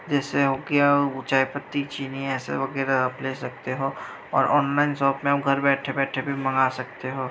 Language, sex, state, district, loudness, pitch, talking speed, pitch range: Hindi, female, Bihar, Sitamarhi, -24 LUFS, 135 Hz, 165 wpm, 135-140 Hz